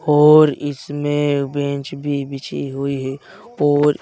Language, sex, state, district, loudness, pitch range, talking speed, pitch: Hindi, male, Uttar Pradesh, Saharanpur, -18 LUFS, 140-150 Hz, 120 wpm, 145 Hz